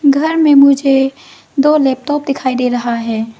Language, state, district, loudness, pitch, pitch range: Hindi, Arunachal Pradesh, Lower Dibang Valley, -13 LUFS, 275 Hz, 250-290 Hz